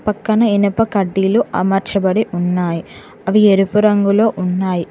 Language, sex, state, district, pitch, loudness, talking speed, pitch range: Telugu, female, Telangana, Mahabubabad, 200 Hz, -15 LUFS, 110 wpm, 185-210 Hz